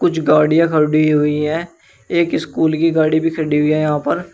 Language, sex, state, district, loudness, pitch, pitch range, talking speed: Hindi, male, Uttar Pradesh, Shamli, -16 LUFS, 155 Hz, 150-165 Hz, 205 wpm